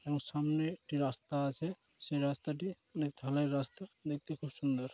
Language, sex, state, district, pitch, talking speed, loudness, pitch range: Bengali, male, West Bengal, Dakshin Dinajpur, 145 Hz, 170 wpm, -38 LUFS, 140-155 Hz